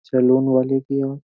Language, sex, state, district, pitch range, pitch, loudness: Hindi, male, Uttar Pradesh, Jyotiba Phule Nagar, 130-135 Hz, 135 Hz, -18 LUFS